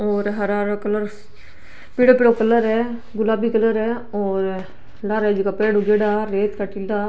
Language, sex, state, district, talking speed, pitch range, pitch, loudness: Marwari, female, Rajasthan, Nagaur, 145 wpm, 205-220 Hz, 210 Hz, -19 LUFS